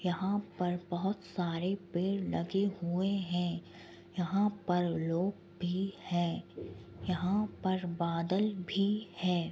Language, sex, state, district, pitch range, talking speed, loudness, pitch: Hindi, female, Uttar Pradesh, Etah, 175-195 Hz, 115 wpm, -34 LUFS, 180 Hz